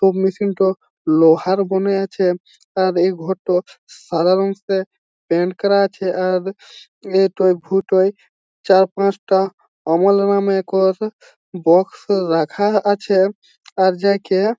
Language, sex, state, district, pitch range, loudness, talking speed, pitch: Bengali, male, West Bengal, Jalpaiguri, 185-195 Hz, -17 LUFS, 115 wpm, 190 Hz